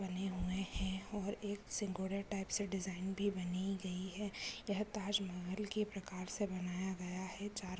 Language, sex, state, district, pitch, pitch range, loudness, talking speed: Hindi, female, Karnataka, Gulbarga, 195 Hz, 185-205 Hz, -41 LUFS, 170 wpm